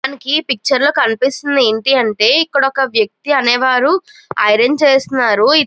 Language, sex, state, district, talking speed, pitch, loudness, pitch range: Telugu, female, Andhra Pradesh, Chittoor, 125 wpm, 270 Hz, -13 LUFS, 245-285 Hz